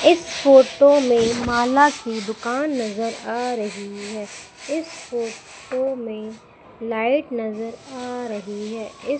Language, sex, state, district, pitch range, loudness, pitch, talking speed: Hindi, female, Madhya Pradesh, Umaria, 220-270 Hz, -21 LUFS, 240 Hz, 125 wpm